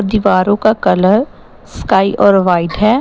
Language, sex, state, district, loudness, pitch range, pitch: Hindi, female, Assam, Sonitpur, -12 LUFS, 185-215 Hz, 200 Hz